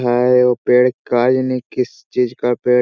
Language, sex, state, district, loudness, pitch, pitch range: Hindi, male, Bihar, Jahanabad, -16 LUFS, 125 Hz, 120-125 Hz